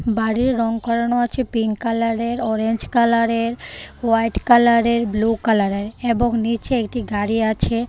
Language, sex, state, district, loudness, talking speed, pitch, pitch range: Bengali, female, Tripura, West Tripura, -19 LUFS, 135 wpm, 230 Hz, 225-235 Hz